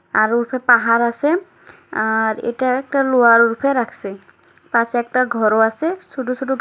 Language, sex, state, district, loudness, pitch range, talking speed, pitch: Bengali, female, West Bengal, Kolkata, -17 LUFS, 230-265 Hz, 155 wpm, 240 Hz